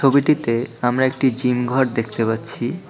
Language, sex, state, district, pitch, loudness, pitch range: Bengali, male, West Bengal, Cooch Behar, 125 Hz, -20 LUFS, 115-135 Hz